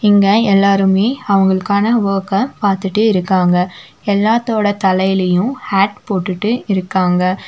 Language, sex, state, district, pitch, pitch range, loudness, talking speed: Tamil, female, Tamil Nadu, Nilgiris, 195 Hz, 190-210 Hz, -14 LUFS, 90 wpm